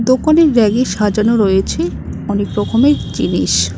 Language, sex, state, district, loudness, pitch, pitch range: Bengali, female, West Bengal, Cooch Behar, -14 LUFS, 215 Hz, 200-255 Hz